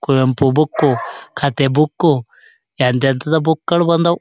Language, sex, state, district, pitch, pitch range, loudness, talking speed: Kannada, male, Karnataka, Shimoga, 150 Hz, 135-160 Hz, -16 LUFS, 115 wpm